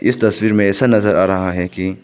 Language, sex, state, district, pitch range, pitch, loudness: Hindi, male, Arunachal Pradesh, Papum Pare, 95-110 Hz, 100 Hz, -15 LUFS